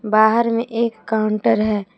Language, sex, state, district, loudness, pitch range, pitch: Hindi, female, Jharkhand, Palamu, -18 LUFS, 215-230 Hz, 220 Hz